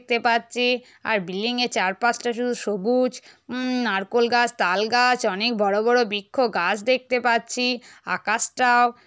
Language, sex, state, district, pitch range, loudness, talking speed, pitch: Bengali, female, West Bengal, North 24 Parganas, 215-245 Hz, -22 LUFS, 130 wpm, 240 Hz